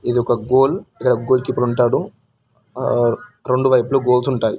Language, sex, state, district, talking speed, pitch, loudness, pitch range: Telugu, male, Telangana, Karimnagar, 130 wpm, 125 Hz, -18 LUFS, 120-130 Hz